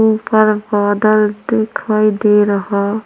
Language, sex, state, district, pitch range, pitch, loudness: Hindi, female, Chhattisgarh, Korba, 205-215 Hz, 215 Hz, -14 LUFS